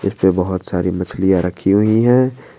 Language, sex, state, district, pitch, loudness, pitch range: Hindi, male, Jharkhand, Garhwa, 95 Hz, -16 LUFS, 90-110 Hz